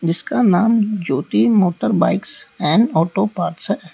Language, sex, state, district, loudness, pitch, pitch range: Hindi, female, Uttar Pradesh, Lalitpur, -17 LUFS, 195 Hz, 175-220 Hz